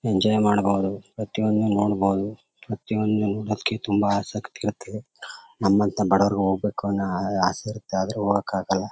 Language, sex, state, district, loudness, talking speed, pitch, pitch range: Kannada, male, Karnataka, Chamarajanagar, -24 LUFS, 115 wpm, 100 Hz, 95-105 Hz